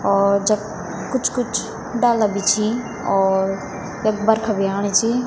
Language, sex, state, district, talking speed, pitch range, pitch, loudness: Garhwali, female, Uttarakhand, Tehri Garhwal, 135 wpm, 200-235 Hz, 215 Hz, -20 LUFS